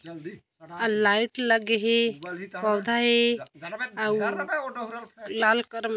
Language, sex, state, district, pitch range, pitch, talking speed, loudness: Hindi, female, Chhattisgarh, Kabirdham, 205-235 Hz, 220 Hz, 70 wpm, -25 LUFS